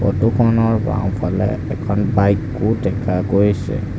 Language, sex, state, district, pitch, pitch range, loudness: Assamese, male, Assam, Sonitpur, 105 Hz, 100-115 Hz, -18 LUFS